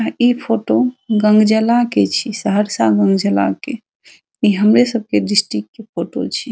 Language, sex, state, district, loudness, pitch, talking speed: Maithili, female, Bihar, Saharsa, -15 LUFS, 215 Hz, 155 wpm